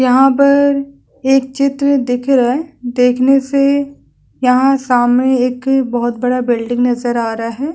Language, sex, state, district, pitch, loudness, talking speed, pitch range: Hindi, female, Uttarakhand, Tehri Garhwal, 260 Hz, -14 LUFS, 145 wpm, 245-275 Hz